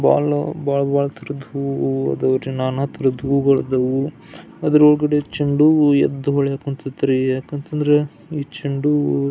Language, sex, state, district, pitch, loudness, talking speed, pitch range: Kannada, male, Karnataka, Belgaum, 140 Hz, -19 LUFS, 135 wpm, 130-145 Hz